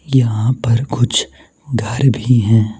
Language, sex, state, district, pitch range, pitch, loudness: Hindi, male, Mizoram, Aizawl, 115-130 Hz, 120 Hz, -15 LUFS